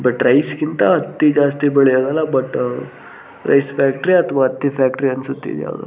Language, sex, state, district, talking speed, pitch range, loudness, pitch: Kannada, male, Karnataka, Gulbarga, 145 wpm, 130-145 Hz, -16 LUFS, 135 Hz